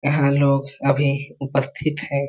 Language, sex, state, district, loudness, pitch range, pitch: Hindi, male, Chhattisgarh, Balrampur, -21 LUFS, 140-145 Hz, 140 Hz